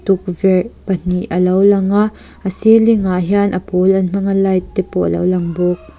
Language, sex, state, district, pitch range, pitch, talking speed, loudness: Mizo, female, Mizoram, Aizawl, 180-195 Hz, 190 Hz, 220 wpm, -15 LUFS